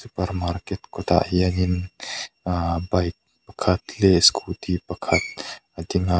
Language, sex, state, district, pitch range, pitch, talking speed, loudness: Mizo, male, Mizoram, Aizawl, 90-95 Hz, 90 Hz, 125 wpm, -23 LUFS